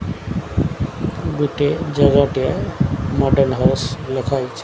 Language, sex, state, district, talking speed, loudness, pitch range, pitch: Odia, male, Odisha, Sambalpur, 90 wpm, -19 LUFS, 130-145 Hz, 135 Hz